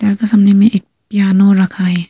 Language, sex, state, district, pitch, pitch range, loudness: Hindi, female, Arunachal Pradesh, Lower Dibang Valley, 200 Hz, 190-205 Hz, -12 LUFS